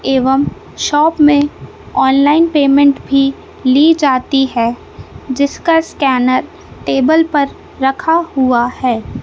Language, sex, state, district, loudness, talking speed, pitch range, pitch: Hindi, male, Madhya Pradesh, Katni, -13 LUFS, 105 wpm, 265-300 Hz, 275 Hz